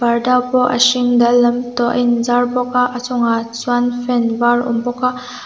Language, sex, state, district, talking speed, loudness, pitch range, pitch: Mizo, female, Mizoram, Aizawl, 230 wpm, -15 LUFS, 240-250 Hz, 245 Hz